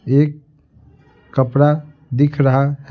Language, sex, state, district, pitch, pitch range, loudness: Hindi, male, Bihar, Patna, 145 Hz, 140-150 Hz, -17 LUFS